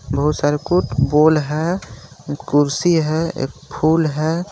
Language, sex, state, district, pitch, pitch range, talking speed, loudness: Hindi, male, Jharkhand, Garhwa, 150 Hz, 140-165 Hz, 135 wpm, -18 LUFS